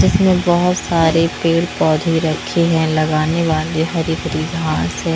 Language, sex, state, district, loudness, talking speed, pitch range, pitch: Hindi, female, Haryana, Rohtak, -16 LUFS, 150 wpm, 155-170 Hz, 165 Hz